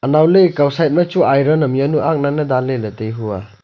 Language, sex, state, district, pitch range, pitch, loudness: Wancho, male, Arunachal Pradesh, Longding, 125-155 Hz, 145 Hz, -15 LUFS